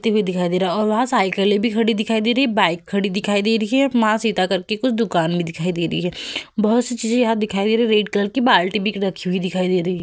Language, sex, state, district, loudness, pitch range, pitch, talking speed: Hindi, female, Uttar Pradesh, Hamirpur, -19 LUFS, 185-225 Hz, 215 Hz, 300 wpm